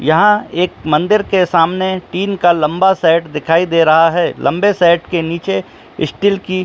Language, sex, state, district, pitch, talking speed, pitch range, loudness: Hindi, male, Jharkhand, Jamtara, 175 Hz, 180 wpm, 165-190 Hz, -14 LUFS